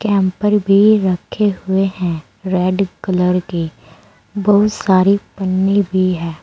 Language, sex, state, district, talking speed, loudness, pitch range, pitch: Hindi, female, Uttar Pradesh, Saharanpur, 120 wpm, -16 LUFS, 180-200 Hz, 190 Hz